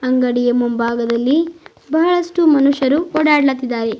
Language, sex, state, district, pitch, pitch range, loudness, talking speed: Kannada, female, Karnataka, Bidar, 275 Hz, 245-320 Hz, -16 LUFS, 75 wpm